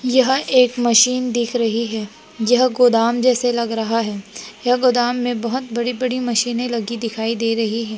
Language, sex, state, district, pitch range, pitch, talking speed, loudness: Hindi, male, Maharashtra, Gondia, 230-250 Hz, 240 Hz, 180 wpm, -18 LUFS